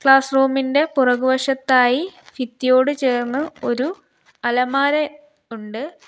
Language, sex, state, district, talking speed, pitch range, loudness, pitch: Malayalam, female, Kerala, Kollam, 90 wpm, 250-290 Hz, -19 LUFS, 270 Hz